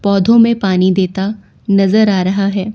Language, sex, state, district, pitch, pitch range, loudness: Hindi, female, Chandigarh, Chandigarh, 195 Hz, 190-210 Hz, -13 LUFS